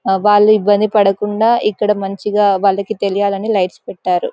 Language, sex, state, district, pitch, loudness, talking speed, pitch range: Telugu, female, Telangana, Karimnagar, 205 Hz, -14 LUFS, 125 wpm, 195-210 Hz